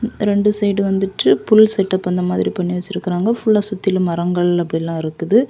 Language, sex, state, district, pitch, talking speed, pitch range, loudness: Tamil, female, Tamil Nadu, Kanyakumari, 190 Hz, 155 wpm, 175-210 Hz, -17 LUFS